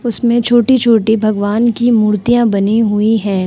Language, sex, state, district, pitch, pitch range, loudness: Hindi, female, Uttar Pradesh, Muzaffarnagar, 225 Hz, 210-235 Hz, -12 LUFS